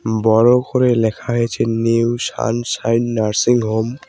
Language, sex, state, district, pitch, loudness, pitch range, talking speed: Bengali, male, West Bengal, Cooch Behar, 115 Hz, -16 LUFS, 110-120 Hz, 130 wpm